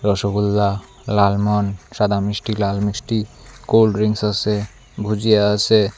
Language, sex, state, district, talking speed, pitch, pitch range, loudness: Bengali, male, Tripura, Unakoti, 110 wpm, 105 Hz, 100-105 Hz, -19 LUFS